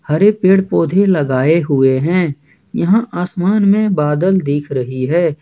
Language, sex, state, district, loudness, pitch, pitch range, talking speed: Hindi, male, Jharkhand, Ranchi, -14 LUFS, 170 Hz, 145-190 Hz, 145 wpm